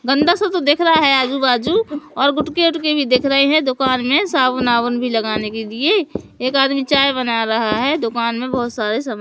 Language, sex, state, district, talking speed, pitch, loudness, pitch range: Hindi, male, Madhya Pradesh, Katni, 220 wpm, 265 Hz, -16 LUFS, 240-300 Hz